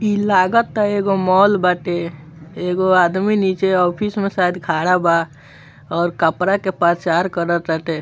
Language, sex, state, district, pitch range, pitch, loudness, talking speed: Bhojpuri, male, Bihar, Muzaffarpur, 170-195 Hz, 180 Hz, -17 LUFS, 155 wpm